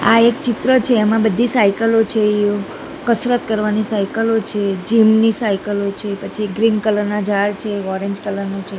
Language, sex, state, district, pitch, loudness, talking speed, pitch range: Gujarati, female, Gujarat, Gandhinagar, 215 Hz, -17 LUFS, 175 wpm, 205-225 Hz